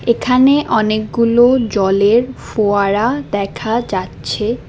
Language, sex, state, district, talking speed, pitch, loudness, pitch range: Bengali, female, Assam, Hailakandi, 75 wpm, 220 Hz, -15 LUFS, 205-245 Hz